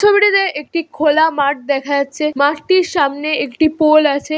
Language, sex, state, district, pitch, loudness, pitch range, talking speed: Bengali, female, West Bengal, Jhargram, 305 Hz, -15 LUFS, 285-330 Hz, 150 wpm